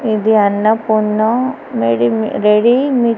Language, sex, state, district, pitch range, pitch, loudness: Telugu, female, Andhra Pradesh, Annamaya, 210-235 Hz, 215 Hz, -14 LUFS